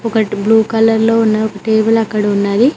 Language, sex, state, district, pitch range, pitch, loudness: Telugu, female, Telangana, Mahabubabad, 215-225 Hz, 220 Hz, -13 LUFS